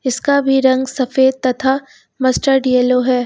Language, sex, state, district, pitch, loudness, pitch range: Hindi, female, Uttar Pradesh, Lucknow, 260 Hz, -15 LUFS, 255-270 Hz